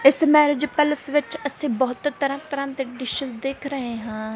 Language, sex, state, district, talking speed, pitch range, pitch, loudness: Punjabi, female, Punjab, Kapurthala, 180 wpm, 260-295 Hz, 275 Hz, -23 LUFS